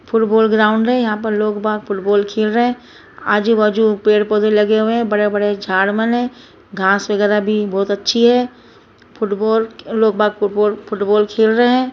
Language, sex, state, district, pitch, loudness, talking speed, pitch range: Hindi, female, Chhattisgarh, Bastar, 215 Hz, -15 LUFS, 175 wpm, 205-225 Hz